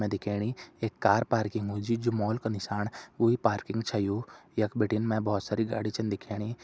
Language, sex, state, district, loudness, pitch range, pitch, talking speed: Hindi, male, Uttarakhand, Tehri Garhwal, -30 LUFS, 105-115 Hz, 110 Hz, 190 wpm